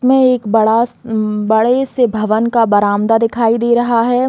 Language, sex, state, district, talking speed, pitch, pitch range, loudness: Hindi, female, Chhattisgarh, Balrampur, 180 wpm, 230 Hz, 220-245 Hz, -13 LUFS